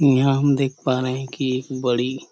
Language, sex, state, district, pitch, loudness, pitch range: Hindi, male, Chhattisgarh, Korba, 130 Hz, -21 LUFS, 130-135 Hz